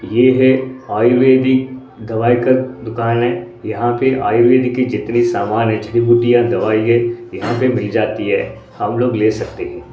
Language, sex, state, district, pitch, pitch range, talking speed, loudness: Hindi, male, Odisha, Sambalpur, 120 Hz, 115-130 Hz, 165 wpm, -15 LUFS